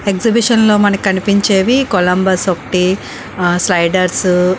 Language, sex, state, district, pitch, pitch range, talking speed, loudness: Telugu, female, Andhra Pradesh, Srikakulam, 190 Hz, 180-205 Hz, 120 wpm, -13 LUFS